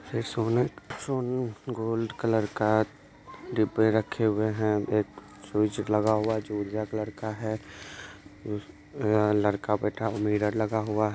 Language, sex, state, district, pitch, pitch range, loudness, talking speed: Maithili, male, Bihar, Supaul, 110 Hz, 105-110 Hz, -28 LUFS, 150 wpm